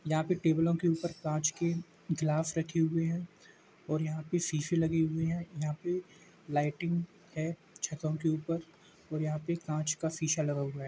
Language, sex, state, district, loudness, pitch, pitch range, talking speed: Hindi, male, Uttar Pradesh, Jalaun, -33 LUFS, 160 Hz, 155-170 Hz, 195 wpm